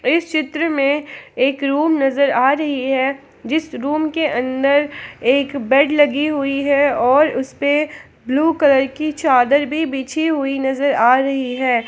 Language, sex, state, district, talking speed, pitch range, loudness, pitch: Hindi, female, Jharkhand, Palamu, 160 wpm, 265-300 Hz, -17 LUFS, 280 Hz